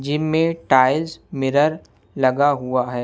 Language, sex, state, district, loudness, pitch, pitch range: Hindi, male, Punjab, Kapurthala, -19 LUFS, 140 Hz, 130-155 Hz